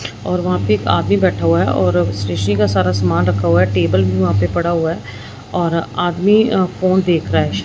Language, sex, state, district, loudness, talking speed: Hindi, female, Punjab, Fazilka, -16 LUFS, 235 wpm